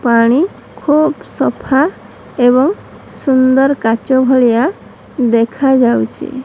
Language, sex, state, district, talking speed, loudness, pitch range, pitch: Odia, female, Odisha, Sambalpur, 95 wpm, -13 LUFS, 235-275 Hz, 260 Hz